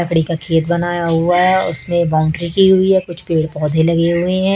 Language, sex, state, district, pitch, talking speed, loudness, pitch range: Hindi, female, Haryana, Jhajjar, 170 Hz, 225 wpm, -15 LUFS, 165-180 Hz